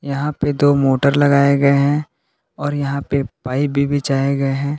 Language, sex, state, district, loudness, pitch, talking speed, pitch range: Hindi, male, Jharkhand, Palamu, -17 LUFS, 140 Hz, 190 wpm, 140-145 Hz